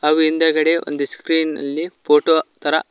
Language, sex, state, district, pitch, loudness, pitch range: Kannada, male, Karnataka, Koppal, 155 Hz, -18 LUFS, 150-160 Hz